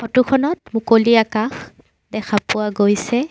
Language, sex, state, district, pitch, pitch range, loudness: Assamese, female, Assam, Sonitpur, 225 Hz, 215-250 Hz, -17 LUFS